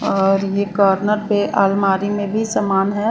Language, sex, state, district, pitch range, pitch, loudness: Hindi, female, Chandigarh, Chandigarh, 195-205 Hz, 200 Hz, -17 LUFS